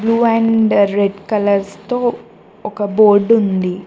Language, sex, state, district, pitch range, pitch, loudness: Telugu, female, Telangana, Mahabubabad, 200-225 Hz, 205 Hz, -14 LUFS